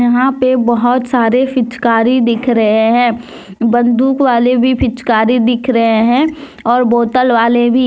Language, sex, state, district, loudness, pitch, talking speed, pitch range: Hindi, female, Jharkhand, Deoghar, -12 LUFS, 240 Hz, 145 wpm, 235-255 Hz